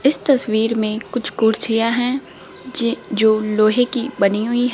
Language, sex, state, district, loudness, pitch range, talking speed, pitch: Hindi, female, Rajasthan, Jaipur, -17 LUFS, 215-245 Hz, 150 wpm, 230 Hz